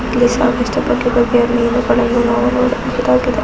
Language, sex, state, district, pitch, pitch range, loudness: Kannada, female, Karnataka, Chamarajanagar, 240 Hz, 235-240 Hz, -14 LUFS